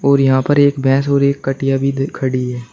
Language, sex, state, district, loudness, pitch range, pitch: Hindi, male, Uttar Pradesh, Shamli, -15 LUFS, 130-140 Hz, 135 Hz